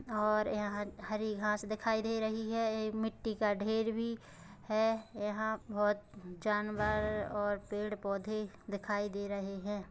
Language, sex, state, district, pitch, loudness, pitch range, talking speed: Hindi, female, Chhattisgarh, Kabirdham, 210 Hz, -36 LUFS, 205-220 Hz, 145 wpm